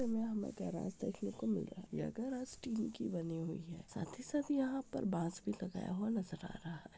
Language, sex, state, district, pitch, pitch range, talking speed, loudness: Hindi, female, Bihar, Araria, 205 Hz, 175-235 Hz, 240 wpm, -41 LUFS